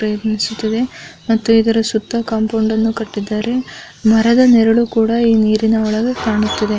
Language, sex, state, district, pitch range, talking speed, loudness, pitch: Kannada, female, Karnataka, Mysore, 220-230 Hz, 135 wpm, -15 LUFS, 225 Hz